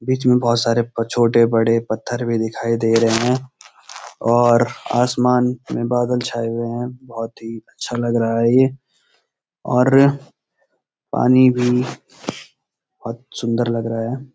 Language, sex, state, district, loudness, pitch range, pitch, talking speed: Hindi, male, Uttarakhand, Uttarkashi, -18 LUFS, 115-125 Hz, 120 Hz, 140 wpm